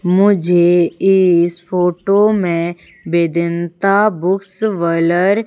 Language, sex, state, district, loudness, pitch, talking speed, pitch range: Hindi, female, Madhya Pradesh, Umaria, -14 LUFS, 180 Hz, 75 wpm, 170-195 Hz